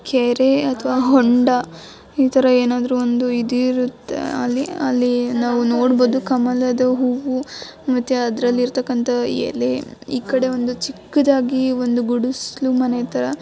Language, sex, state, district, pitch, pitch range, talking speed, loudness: Kannada, female, Karnataka, Dakshina Kannada, 250 Hz, 245-260 Hz, 115 wpm, -18 LUFS